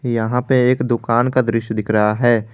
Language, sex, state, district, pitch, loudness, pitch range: Hindi, male, Jharkhand, Garhwa, 120 Hz, -17 LUFS, 110-125 Hz